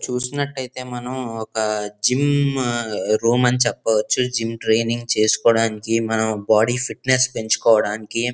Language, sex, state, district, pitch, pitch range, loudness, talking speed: Telugu, male, Andhra Pradesh, Visakhapatnam, 115 Hz, 110-125 Hz, -20 LUFS, 110 wpm